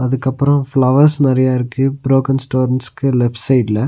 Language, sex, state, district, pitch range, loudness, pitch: Tamil, male, Tamil Nadu, Nilgiris, 130-135 Hz, -14 LUFS, 130 Hz